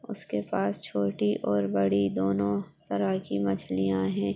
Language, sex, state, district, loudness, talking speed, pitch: Hindi, female, Bihar, Jahanabad, -28 LUFS, 140 wpm, 100 Hz